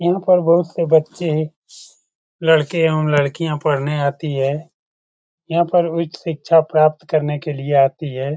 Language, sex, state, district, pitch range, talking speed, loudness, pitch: Hindi, male, Bihar, Saran, 145-165 Hz, 145 wpm, -18 LUFS, 155 Hz